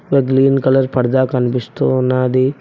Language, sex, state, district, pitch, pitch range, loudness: Telugu, male, Telangana, Mahabubabad, 130 Hz, 125-135 Hz, -15 LUFS